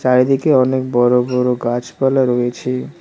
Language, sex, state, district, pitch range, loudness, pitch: Bengali, male, West Bengal, Cooch Behar, 125-130 Hz, -16 LUFS, 125 Hz